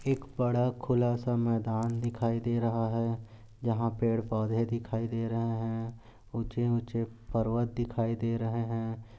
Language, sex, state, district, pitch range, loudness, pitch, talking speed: Hindi, male, Maharashtra, Aurangabad, 115-120 Hz, -31 LUFS, 115 Hz, 145 wpm